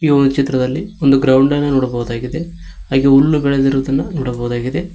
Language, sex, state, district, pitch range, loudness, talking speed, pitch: Kannada, male, Karnataka, Koppal, 130-145 Hz, -15 LUFS, 135 wpm, 135 Hz